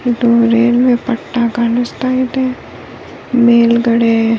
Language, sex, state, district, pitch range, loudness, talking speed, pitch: Kannada, female, Karnataka, Dharwad, 235-250 Hz, -13 LUFS, 95 wpm, 235 Hz